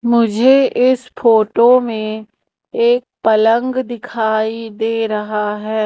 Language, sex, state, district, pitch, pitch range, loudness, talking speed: Hindi, female, Madhya Pradesh, Umaria, 225 Hz, 220-250 Hz, -15 LUFS, 100 wpm